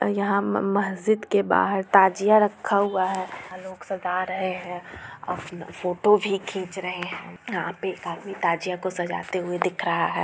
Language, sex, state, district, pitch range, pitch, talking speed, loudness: Hindi, female, Bihar, Gopalganj, 180-200 Hz, 190 Hz, 180 wpm, -24 LUFS